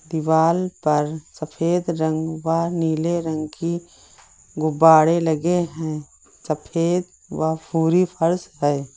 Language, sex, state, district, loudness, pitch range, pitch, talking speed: Hindi, male, Uttar Pradesh, Lucknow, -21 LUFS, 155-170 Hz, 160 Hz, 105 wpm